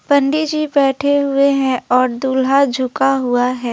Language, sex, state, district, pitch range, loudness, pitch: Hindi, female, West Bengal, Alipurduar, 255-280 Hz, -15 LUFS, 270 Hz